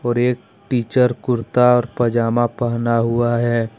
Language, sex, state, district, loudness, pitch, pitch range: Hindi, male, Jharkhand, Deoghar, -18 LUFS, 120 Hz, 115-125 Hz